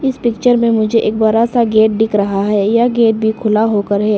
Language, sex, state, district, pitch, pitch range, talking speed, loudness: Hindi, female, Arunachal Pradesh, Lower Dibang Valley, 220 Hz, 215-230 Hz, 245 wpm, -13 LUFS